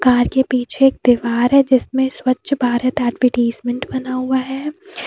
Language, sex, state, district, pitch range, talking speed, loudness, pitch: Hindi, female, Jharkhand, Deoghar, 245-265 Hz, 130 wpm, -17 LUFS, 255 Hz